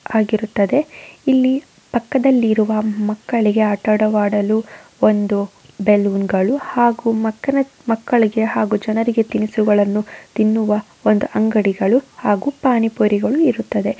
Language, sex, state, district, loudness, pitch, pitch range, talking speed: Kannada, female, Karnataka, Raichur, -17 LUFS, 215 Hz, 210-235 Hz, 95 wpm